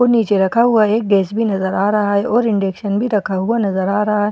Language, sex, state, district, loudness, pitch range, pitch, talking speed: Hindi, female, Bihar, Katihar, -16 LUFS, 195-225 Hz, 210 Hz, 275 wpm